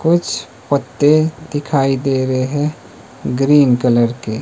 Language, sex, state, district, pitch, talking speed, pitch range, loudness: Hindi, male, Himachal Pradesh, Shimla, 135 Hz, 120 wpm, 125-145 Hz, -16 LUFS